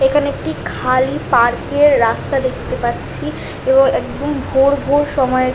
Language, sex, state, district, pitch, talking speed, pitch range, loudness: Bengali, female, West Bengal, Jhargram, 275 Hz, 160 wpm, 255-290 Hz, -16 LUFS